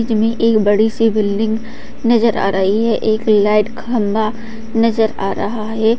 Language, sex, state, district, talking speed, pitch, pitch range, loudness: Hindi, female, Bihar, Jamui, 170 wpm, 220 Hz, 215-230 Hz, -16 LUFS